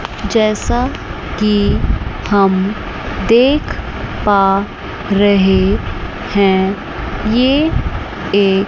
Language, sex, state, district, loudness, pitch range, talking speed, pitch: Hindi, female, Chandigarh, Chandigarh, -15 LUFS, 195-215 Hz, 60 wpm, 200 Hz